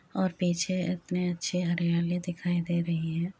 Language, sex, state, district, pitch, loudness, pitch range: Hindi, female, Uttar Pradesh, Etah, 175 Hz, -29 LUFS, 170-180 Hz